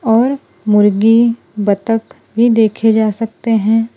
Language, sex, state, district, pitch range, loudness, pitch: Hindi, female, Gujarat, Valsad, 215-230 Hz, -13 LUFS, 225 Hz